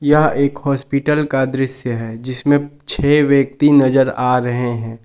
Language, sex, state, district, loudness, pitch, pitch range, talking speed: Hindi, male, Jharkhand, Palamu, -16 LUFS, 135 Hz, 125-145 Hz, 155 wpm